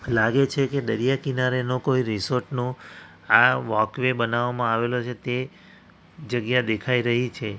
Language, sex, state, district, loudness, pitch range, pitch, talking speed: Gujarati, male, Gujarat, Valsad, -23 LUFS, 115-130 Hz, 125 Hz, 150 wpm